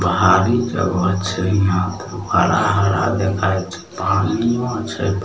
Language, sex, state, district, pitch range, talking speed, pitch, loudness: Maithili, male, Bihar, Samastipur, 95-105 Hz, 135 wpm, 95 Hz, -18 LUFS